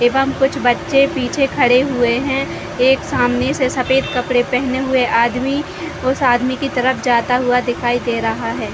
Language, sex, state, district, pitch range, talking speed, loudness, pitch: Hindi, female, Chhattisgarh, Raigarh, 245-265 Hz, 170 wpm, -16 LUFS, 255 Hz